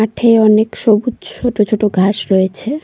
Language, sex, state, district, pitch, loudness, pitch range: Bengali, female, West Bengal, Cooch Behar, 215 Hz, -13 LUFS, 205-235 Hz